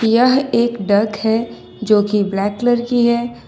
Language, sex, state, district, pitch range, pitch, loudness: Hindi, female, Jharkhand, Ranchi, 210-240 Hz, 230 Hz, -16 LUFS